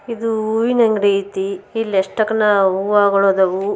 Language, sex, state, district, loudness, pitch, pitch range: Kannada, female, Karnataka, Bijapur, -16 LUFS, 205 Hz, 195-220 Hz